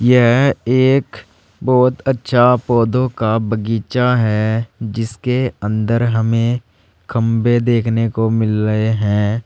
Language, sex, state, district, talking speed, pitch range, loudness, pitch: Hindi, male, Uttar Pradesh, Saharanpur, 110 wpm, 110-125 Hz, -16 LUFS, 115 Hz